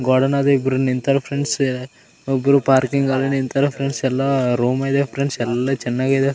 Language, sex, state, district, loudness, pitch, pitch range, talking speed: Kannada, male, Karnataka, Raichur, -19 LUFS, 135 Hz, 130-140 Hz, 140 wpm